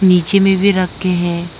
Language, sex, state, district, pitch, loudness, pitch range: Hindi, female, Arunachal Pradesh, Lower Dibang Valley, 185 Hz, -14 LUFS, 175-195 Hz